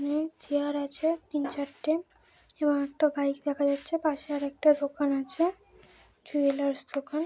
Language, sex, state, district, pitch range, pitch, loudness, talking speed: Bengali, female, West Bengal, Dakshin Dinajpur, 280-310 Hz, 290 Hz, -29 LUFS, 140 wpm